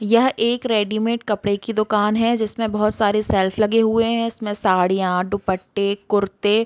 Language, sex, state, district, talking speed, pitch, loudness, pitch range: Hindi, female, Uttar Pradesh, Varanasi, 170 wpm, 210 Hz, -20 LUFS, 200-225 Hz